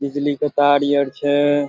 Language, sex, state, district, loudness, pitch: Maithili, male, Bihar, Supaul, -18 LUFS, 145 Hz